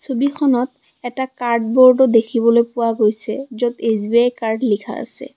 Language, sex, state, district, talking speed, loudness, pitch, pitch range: Assamese, female, Assam, Kamrup Metropolitan, 135 wpm, -17 LUFS, 235 Hz, 225-255 Hz